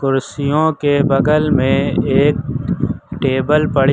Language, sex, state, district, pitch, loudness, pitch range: Hindi, male, Uttar Pradesh, Lucknow, 140 Hz, -16 LUFS, 135-150 Hz